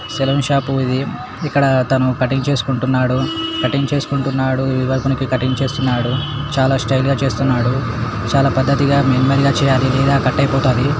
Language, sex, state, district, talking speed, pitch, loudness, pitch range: Telugu, male, Telangana, Nalgonda, 120 wpm, 135 Hz, -16 LUFS, 130-140 Hz